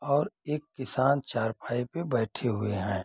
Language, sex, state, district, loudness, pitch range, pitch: Hindi, male, Bihar, East Champaran, -30 LUFS, 110-145 Hz, 125 Hz